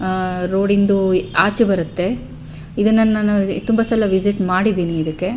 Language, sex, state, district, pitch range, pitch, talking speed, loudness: Kannada, female, Karnataka, Bellary, 185-215 Hz, 195 Hz, 125 wpm, -17 LUFS